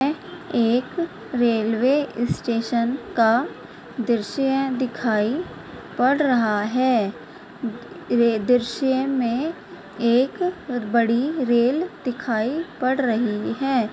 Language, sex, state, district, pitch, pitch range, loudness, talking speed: Hindi, female, Bihar, Purnia, 245 Hz, 235-270 Hz, -22 LUFS, 85 wpm